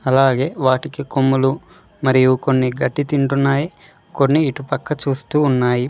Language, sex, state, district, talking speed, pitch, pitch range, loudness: Telugu, male, Telangana, Mahabubabad, 110 wpm, 135 Hz, 130-145 Hz, -18 LUFS